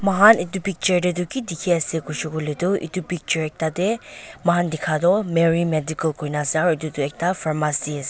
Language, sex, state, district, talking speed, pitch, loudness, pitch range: Nagamese, female, Nagaland, Dimapur, 200 wpm, 165 Hz, -21 LUFS, 155-180 Hz